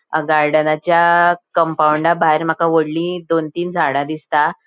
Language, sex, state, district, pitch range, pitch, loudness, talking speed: Konkani, female, Goa, North and South Goa, 155-170 Hz, 160 Hz, -16 LUFS, 115 wpm